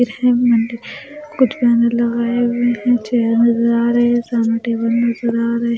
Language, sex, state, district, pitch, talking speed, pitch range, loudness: Hindi, female, Maharashtra, Mumbai Suburban, 235 Hz, 165 wpm, 235-240 Hz, -16 LUFS